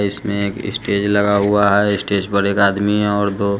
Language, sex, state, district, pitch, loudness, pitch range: Hindi, male, Bihar, West Champaran, 100 Hz, -17 LUFS, 100-105 Hz